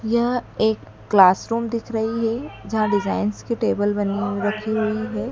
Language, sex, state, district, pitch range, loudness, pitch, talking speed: Hindi, female, Madhya Pradesh, Dhar, 205-230 Hz, -21 LUFS, 220 Hz, 160 wpm